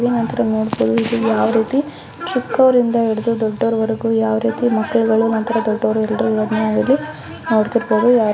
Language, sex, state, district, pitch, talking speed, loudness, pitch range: Kannada, female, Karnataka, Raichur, 225 Hz, 95 wpm, -17 LUFS, 220-235 Hz